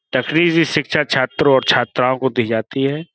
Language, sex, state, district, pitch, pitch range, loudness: Hindi, male, Uttar Pradesh, Budaun, 135 Hz, 130-150 Hz, -16 LUFS